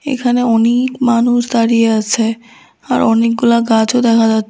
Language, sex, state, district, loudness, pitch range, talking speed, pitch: Bengali, female, Tripura, West Tripura, -13 LUFS, 225-245 Hz, 135 wpm, 230 Hz